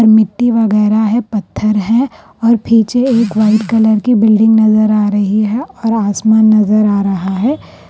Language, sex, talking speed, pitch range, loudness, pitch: Urdu, female, 145 wpm, 210-230 Hz, -12 LUFS, 220 Hz